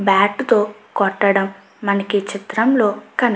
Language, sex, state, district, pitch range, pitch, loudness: Telugu, female, Andhra Pradesh, Chittoor, 195-215 Hz, 200 Hz, -18 LUFS